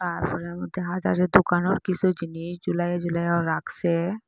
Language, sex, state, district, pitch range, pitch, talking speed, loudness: Bengali, female, Assam, Hailakandi, 170-185 Hz, 175 Hz, 110 wpm, -25 LUFS